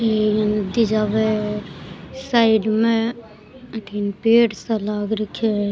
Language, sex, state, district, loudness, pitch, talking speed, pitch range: Rajasthani, female, Rajasthan, Churu, -20 LUFS, 215 Hz, 125 wpm, 210-225 Hz